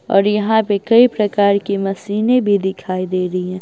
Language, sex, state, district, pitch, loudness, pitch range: Hindi, female, Bihar, Patna, 200 Hz, -16 LUFS, 190-210 Hz